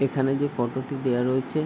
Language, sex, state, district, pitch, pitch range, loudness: Bengali, male, West Bengal, Paschim Medinipur, 135 Hz, 130-140 Hz, -26 LUFS